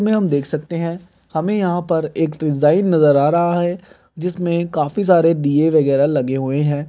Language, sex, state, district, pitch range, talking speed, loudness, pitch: Hindi, male, Bihar, Begusarai, 150-175 Hz, 190 wpm, -17 LUFS, 165 Hz